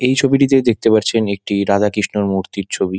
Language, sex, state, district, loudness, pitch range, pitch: Bengali, male, West Bengal, Dakshin Dinajpur, -16 LUFS, 100-120 Hz, 105 Hz